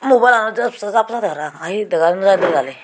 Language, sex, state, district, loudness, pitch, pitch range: Chakma, female, Tripura, Unakoti, -16 LUFS, 205 Hz, 165-235 Hz